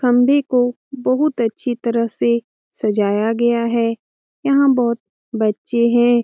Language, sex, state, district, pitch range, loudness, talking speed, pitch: Hindi, female, Bihar, Jamui, 230-250 Hz, -18 LUFS, 125 wpm, 235 Hz